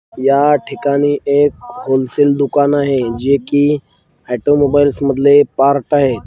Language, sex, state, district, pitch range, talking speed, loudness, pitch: Marathi, male, Maharashtra, Washim, 135-145 Hz, 115 wpm, -14 LUFS, 140 Hz